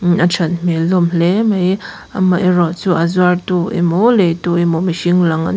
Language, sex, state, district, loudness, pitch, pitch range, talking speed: Mizo, female, Mizoram, Aizawl, -14 LUFS, 175 Hz, 170-185 Hz, 170 wpm